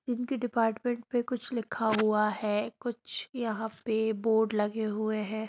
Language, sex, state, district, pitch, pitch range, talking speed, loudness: Hindi, female, Bihar, Gaya, 220 Hz, 215-240 Hz, 155 wpm, -30 LUFS